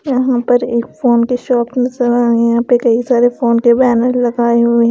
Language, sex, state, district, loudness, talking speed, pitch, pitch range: Hindi, female, Punjab, Pathankot, -13 LUFS, 245 wpm, 240 Hz, 235-245 Hz